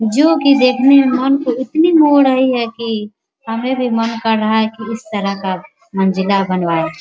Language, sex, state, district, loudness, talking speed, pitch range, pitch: Hindi, female, Bihar, Muzaffarpur, -14 LUFS, 205 wpm, 210-265 Hz, 230 Hz